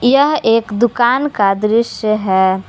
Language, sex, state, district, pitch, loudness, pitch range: Hindi, female, Jharkhand, Garhwa, 225 Hz, -14 LUFS, 205-240 Hz